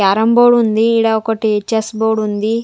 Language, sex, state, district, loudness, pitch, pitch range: Telugu, female, Andhra Pradesh, Sri Satya Sai, -14 LUFS, 220 Hz, 215-225 Hz